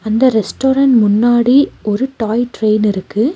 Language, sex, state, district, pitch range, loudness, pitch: Tamil, female, Tamil Nadu, Nilgiris, 215-260 Hz, -13 LUFS, 230 Hz